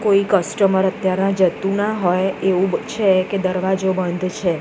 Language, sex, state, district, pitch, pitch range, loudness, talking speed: Gujarati, female, Gujarat, Gandhinagar, 190 Hz, 185-195 Hz, -18 LUFS, 155 wpm